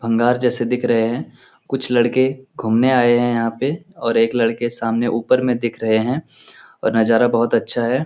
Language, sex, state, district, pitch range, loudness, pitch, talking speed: Hindi, male, Bihar, Lakhisarai, 115-125 Hz, -18 LUFS, 120 Hz, 185 wpm